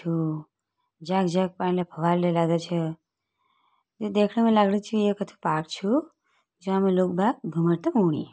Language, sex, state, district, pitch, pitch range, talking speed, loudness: Hindi, female, Uttarakhand, Tehri Garhwal, 185 Hz, 170-210 Hz, 95 wpm, -25 LUFS